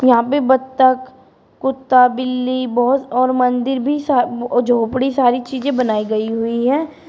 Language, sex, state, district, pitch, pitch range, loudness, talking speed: Hindi, female, Uttar Pradesh, Shamli, 255 Hz, 245-265 Hz, -16 LUFS, 160 wpm